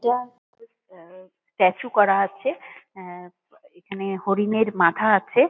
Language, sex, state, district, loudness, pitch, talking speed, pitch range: Bengali, female, West Bengal, Kolkata, -21 LUFS, 195 Hz, 110 wpm, 185-225 Hz